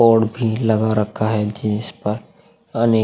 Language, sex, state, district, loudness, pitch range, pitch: Hindi, male, Uttar Pradesh, Hamirpur, -20 LUFS, 105-115 Hz, 110 Hz